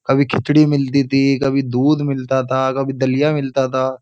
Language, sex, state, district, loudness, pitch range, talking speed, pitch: Hindi, male, Uttar Pradesh, Jyotiba Phule Nagar, -17 LUFS, 130-140 Hz, 180 wpm, 135 Hz